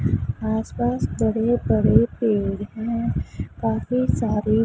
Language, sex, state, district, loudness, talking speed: Hindi, female, Punjab, Pathankot, -22 LUFS, 105 wpm